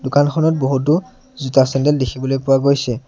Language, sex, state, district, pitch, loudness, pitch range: Assamese, male, Assam, Sonitpur, 135 Hz, -16 LUFS, 130-145 Hz